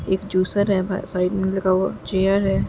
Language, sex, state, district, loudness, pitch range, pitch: Hindi, female, Uttar Pradesh, Jyotiba Phule Nagar, -21 LUFS, 185-195 Hz, 190 Hz